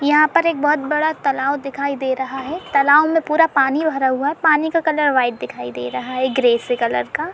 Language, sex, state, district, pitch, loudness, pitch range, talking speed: Hindi, female, Uttar Pradesh, Muzaffarnagar, 280 Hz, -18 LUFS, 260-305 Hz, 235 wpm